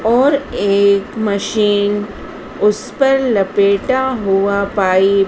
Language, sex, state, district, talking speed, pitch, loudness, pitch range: Hindi, female, Madhya Pradesh, Dhar, 90 wpm, 205 Hz, -15 LUFS, 200-240 Hz